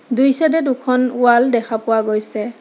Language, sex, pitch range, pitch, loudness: Assamese, female, 225-260 Hz, 240 Hz, -16 LUFS